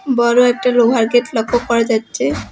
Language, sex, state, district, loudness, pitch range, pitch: Bengali, female, West Bengal, Alipurduar, -15 LUFS, 225-245 Hz, 235 Hz